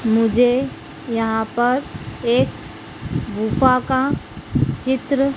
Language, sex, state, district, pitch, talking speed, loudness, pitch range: Hindi, female, Madhya Pradesh, Dhar, 245 Hz, 80 wpm, -20 LUFS, 225-260 Hz